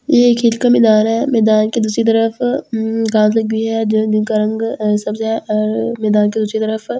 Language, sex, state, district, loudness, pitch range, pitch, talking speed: Hindi, female, Delhi, New Delhi, -15 LUFS, 215-230 Hz, 220 Hz, 225 wpm